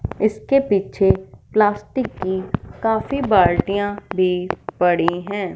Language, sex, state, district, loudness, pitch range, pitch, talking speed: Hindi, female, Punjab, Fazilka, -20 LUFS, 180-215 Hz, 195 Hz, 95 wpm